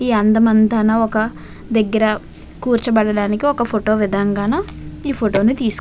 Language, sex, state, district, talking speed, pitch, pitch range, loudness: Telugu, female, Andhra Pradesh, Visakhapatnam, 135 wpm, 220 Hz, 210-230 Hz, -17 LUFS